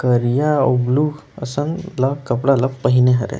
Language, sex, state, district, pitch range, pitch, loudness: Chhattisgarhi, male, Chhattisgarh, Rajnandgaon, 125-145 Hz, 135 Hz, -18 LUFS